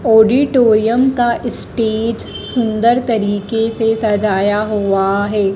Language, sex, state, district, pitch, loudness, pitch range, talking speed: Hindi, female, Madhya Pradesh, Dhar, 225 Hz, -15 LUFS, 205-235 Hz, 95 wpm